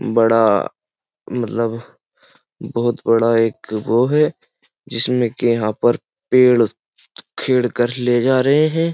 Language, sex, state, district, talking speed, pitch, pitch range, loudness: Hindi, male, Uttar Pradesh, Jyotiba Phule Nagar, 120 wpm, 120 Hz, 115-125 Hz, -17 LUFS